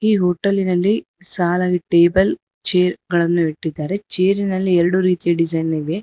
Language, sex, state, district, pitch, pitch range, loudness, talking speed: Kannada, female, Karnataka, Bangalore, 180 Hz, 170-190 Hz, -17 LUFS, 120 wpm